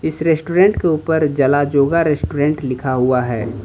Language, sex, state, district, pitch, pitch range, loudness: Hindi, male, Jharkhand, Ranchi, 145 Hz, 130-160 Hz, -16 LUFS